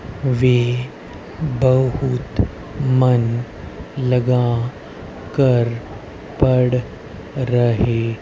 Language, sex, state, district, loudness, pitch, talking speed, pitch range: Hindi, male, Haryana, Rohtak, -18 LUFS, 125 Hz, 50 wpm, 115-130 Hz